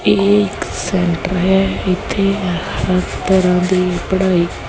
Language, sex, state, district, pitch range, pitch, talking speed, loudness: Punjabi, female, Punjab, Kapurthala, 175-190 Hz, 185 Hz, 115 wpm, -16 LUFS